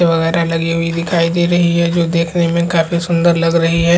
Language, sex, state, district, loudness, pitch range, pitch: Chhattisgarhi, male, Chhattisgarh, Jashpur, -14 LUFS, 165-170 Hz, 170 Hz